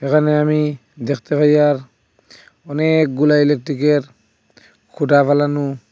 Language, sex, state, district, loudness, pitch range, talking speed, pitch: Bengali, male, Assam, Hailakandi, -16 LUFS, 135-150 Hz, 90 wpm, 145 Hz